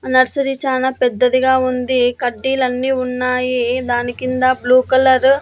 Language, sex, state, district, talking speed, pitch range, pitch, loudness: Telugu, female, Andhra Pradesh, Annamaya, 120 wpm, 250-260 Hz, 255 Hz, -16 LUFS